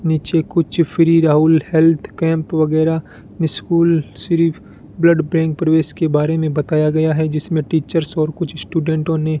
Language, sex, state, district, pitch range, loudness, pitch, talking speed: Hindi, male, Rajasthan, Bikaner, 155-165 Hz, -16 LUFS, 160 Hz, 165 wpm